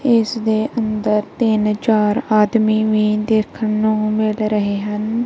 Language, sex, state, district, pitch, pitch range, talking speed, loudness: Punjabi, female, Punjab, Kapurthala, 215 Hz, 210-220 Hz, 135 wpm, -17 LUFS